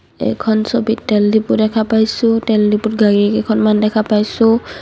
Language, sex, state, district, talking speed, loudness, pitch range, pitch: Assamese, female, Assam, Kamrup Metropolitan, 150 wpm, -14 LUFS, 215-225 Hz, 220 Hz